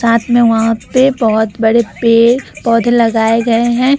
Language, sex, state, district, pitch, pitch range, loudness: Hindi, female, Bihar, Vaishali, 230 Hz, 225-240 Hz, -11 LUFS